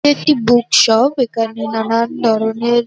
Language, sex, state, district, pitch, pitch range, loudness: Bengali, female, West Bengal, North 24 Parganas, 235 Hz, 225-250 Hz, -14 LUFS